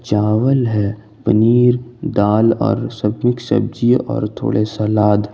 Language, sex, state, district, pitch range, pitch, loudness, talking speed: Hindi, male, Jharkhand, Ranchi, 105-125 Hz, 110 Hz, -16 LUFS, 125 wpm